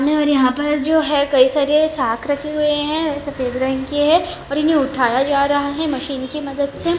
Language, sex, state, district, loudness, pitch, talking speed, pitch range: Hindi, female, Rajasthan, Churu, -18 LUFS, 285 Hz, 215 wpm, 275-300 Hz